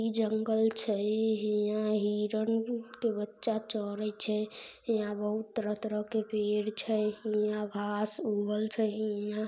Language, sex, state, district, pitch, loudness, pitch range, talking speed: Maithili, female, Bihar, Samastipur, 215 Hz, -32 LUFS, 210-220 Hz, 125 wpm